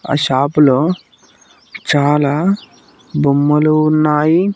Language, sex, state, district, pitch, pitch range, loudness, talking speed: Telugu, male, Telangana, Mahabubabad, 150 Hz, 145-155 Hz, -14 LUFS, 65 wpm